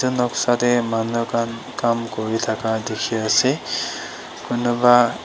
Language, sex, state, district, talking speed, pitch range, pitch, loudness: Nagamese, female, Nagaland, Dimapur, 125 wpm, 115-120 Hz, 115 Hz, -20 LUFS